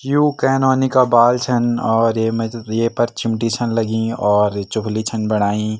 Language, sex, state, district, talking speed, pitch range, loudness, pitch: Garhwali, male, Uttarakhand, Tehri Garhwal, 185 wpm, 110-120 Hz, -17 LUFS, 115 Hz